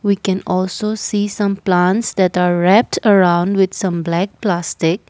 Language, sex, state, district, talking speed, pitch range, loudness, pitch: English, female, Assam, Kamrup Metropolitan, 165 wpm, 180-205 Hz, -16 LUFS, 190 Hz